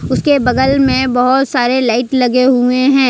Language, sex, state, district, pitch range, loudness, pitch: Hindi, female, Jharkhand, Ranchi, 250-265 Hz, -12 LUFS, 255 Hz